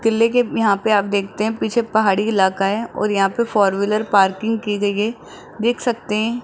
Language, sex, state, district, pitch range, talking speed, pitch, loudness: Hindi, male, Rajasthan, Jaipur, 200-225 Hz, 215 wpm, 215 Hz, -18 LUFS